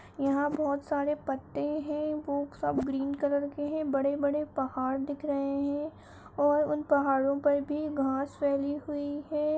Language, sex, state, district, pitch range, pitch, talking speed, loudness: Hindi, female, Uttar Pradesh, Jyotiba Phule Nagar, 280-295 Hz, 285 Hz, 165 wpm, -30 LUFS